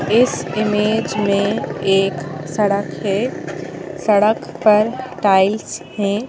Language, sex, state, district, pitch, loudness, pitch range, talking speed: Hindi, female, Madhya Pradesh, Bhopal, 200 Hz, -18 LUFS, 190-215 Hz, 95 wpm